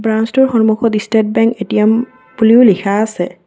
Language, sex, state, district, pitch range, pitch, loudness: Assamese, female, Assam, Kamrup Metropolitan, 215-230 Hz, 220 Hz, -12 LUFS